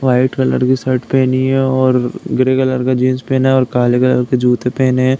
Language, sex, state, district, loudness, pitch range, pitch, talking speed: Hindi, male, Uttar Pradesh, Deoria, -14 LUFS, 125-130 Hz, 130 Hz, 230 wpm